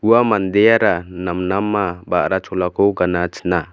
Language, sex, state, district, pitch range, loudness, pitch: Garo, male, Meghalaya, West Garo Hills, 90-100 Hz, -17 LUFS, 90 Hz